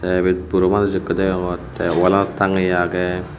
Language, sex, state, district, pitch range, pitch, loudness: Chakma, male, Tripura, Unakoti, 90-95 Hz, 90 Hz, -18 LUFS